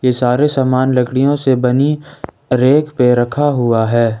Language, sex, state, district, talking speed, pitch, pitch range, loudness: Hindi, male, Jharkhand, Ranchi, 155 wpm, 130 Hz, 125-145 Hz, -14 LUFS